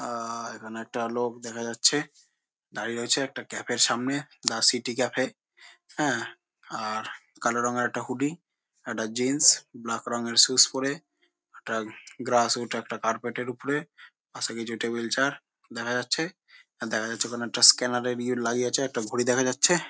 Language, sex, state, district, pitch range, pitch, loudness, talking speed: Bengali, male, West Bengal, Jhargram, 115-130 Hz, 120 Hz, -26 LUFS, 155 wpm